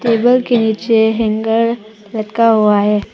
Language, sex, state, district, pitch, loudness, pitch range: Hindi, female, Arunachal Pradesh, Papum Pare, 225 Hz, -13 LUFS, 215-230 Hz